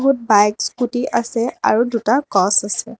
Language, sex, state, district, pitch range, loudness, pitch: Assamese, female, Assam, Kamrup Metropolitan, 210-245 Hz, -17 LUFS, 230 Hz